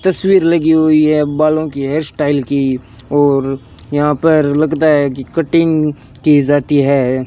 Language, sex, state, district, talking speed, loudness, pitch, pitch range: Hindi, male, Rajasthan, Bikaner, 155 wpm, -13 LUFS, 145 Hz, 135-155 Hz